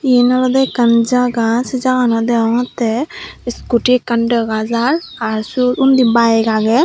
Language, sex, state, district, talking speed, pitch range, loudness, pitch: Chakma, female, Tripura, Dhalai, 130 wpm, 230-255 Hz, -14 LUFS, 240 Hz